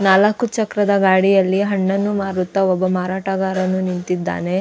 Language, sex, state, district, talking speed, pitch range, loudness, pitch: Kannada, female, Karnataka, Dakshina Kannada, 115 wpm, 185-200 Hz, -18 LUFS, 190 Hz